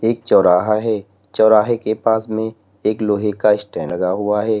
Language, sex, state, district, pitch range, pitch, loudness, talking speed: Hindi, male, Uttar Pradesh, Lalitpur, 105-110 Hz, 110 Hz, -17 LUFS, 180 wpm